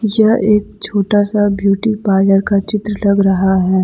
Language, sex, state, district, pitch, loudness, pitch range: Hindi, female, Jharkhand, Deoghar, 200 Hz, -14 LUFS, 195-210 Hz